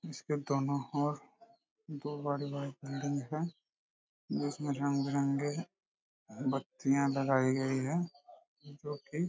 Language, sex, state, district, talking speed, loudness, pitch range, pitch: Hindi, male, Jharkhand, Jamtara, 110 wpm, -35 LUFS, 140-165 Hz, 145 Hz